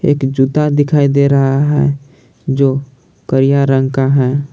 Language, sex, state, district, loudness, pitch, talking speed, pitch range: Hindi, male, Jharkhand, Palamu, -13 LUFS, 140 Hz, 130 wpm, 135-145 Hz